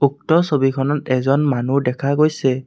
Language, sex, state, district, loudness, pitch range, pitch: Assamese, male, Assam, Kamrup Metropolitan, -18 LUFS, 135-145 Hz, 140 Hz